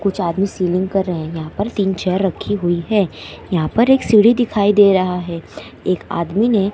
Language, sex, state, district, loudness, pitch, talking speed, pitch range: Hindi, female, Maharashtra, Mumbai Suburban, -17 LUFS, 195 Hz, 215 wpm, 175-205 Hz